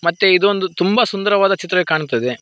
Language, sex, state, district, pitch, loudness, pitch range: Kannada, male, Karnataka, Koppal, 185 Hz, -16 LUFS, 170-195 Hz